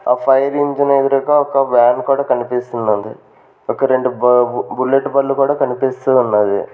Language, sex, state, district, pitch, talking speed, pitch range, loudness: Telugu, male, Andhra Pradesh, Manyam, 130 Hz, 135 wpm, 125-140 Hz, -15 LUFS